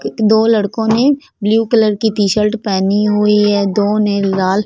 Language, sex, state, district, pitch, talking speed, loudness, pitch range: Hindi, female, Punjab, Fazilka, 210 Hz, 195 wpm, -13 LUFS, 205-220 Hz